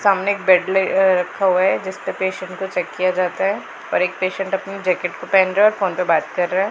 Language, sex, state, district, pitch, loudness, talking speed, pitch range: Hindi, female, Punjab, Pathankot, 190 Hz, -19 LUFS, 275 wpm, 185-195 Hz